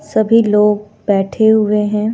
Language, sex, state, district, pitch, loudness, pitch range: Hindi, female, Jharkhand, Deoghar, 210 Hz, -13 LUFS, 210-220 Hz